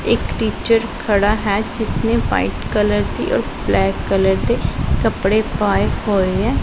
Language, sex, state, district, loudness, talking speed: Punjabi, female, Punjab, Pathankot, -18 LUFS, 145 wpm